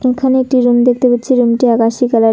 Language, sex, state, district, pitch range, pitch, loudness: Bengali, female, West Bengal, Cooch Behar, 235-255 Hz, 245 Hz, -12 LUFS